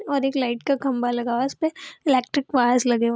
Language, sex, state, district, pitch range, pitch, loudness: Hindi, female, Bihar, Madhepura, 245-280 Hz, 260 Hz, -23 LUFS